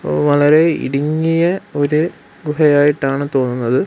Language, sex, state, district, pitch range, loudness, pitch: Malayalam, male, Kerala, Kollam, 135-155 Hz, -15 LUFS, 145 Hz